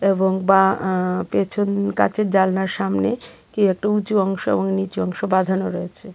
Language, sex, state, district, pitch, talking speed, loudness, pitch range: Bengali, female, Tripura, West Tripura, 190 Hz, 155 wpm, -20 LUFS, 180-200 Hz